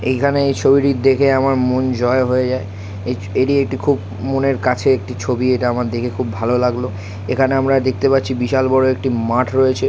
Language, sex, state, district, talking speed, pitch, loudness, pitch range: Bengali, male, West Bengal, Malda, 180 wpm, 130 Hz, -17 LUFS, 125-135 Hz